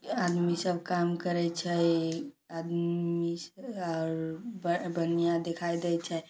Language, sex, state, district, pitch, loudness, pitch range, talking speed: Maithili, female, Bihar, Samastipur, 170 Hz, -31 LUFS, 170-175 Hz, 105 wpm